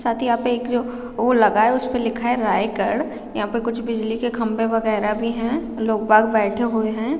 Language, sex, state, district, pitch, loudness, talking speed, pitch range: Hindi, female, Chhattisgarh, Raigarh, 230 Hz, -20 LUFS, 235 wpm, 220-240 Hz